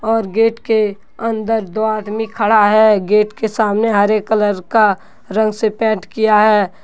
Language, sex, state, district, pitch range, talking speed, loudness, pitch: Hindi, male, Jharkhand, Deoghar, 210-220 Hz, 165 wpm, -15 LUFS, 215 Hz